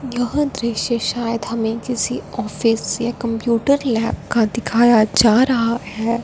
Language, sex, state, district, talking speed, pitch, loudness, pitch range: Hindi, female, Punjab, Fazilka, 135 wpm, 235 Hz, -18 LUFS, 225-245 Hz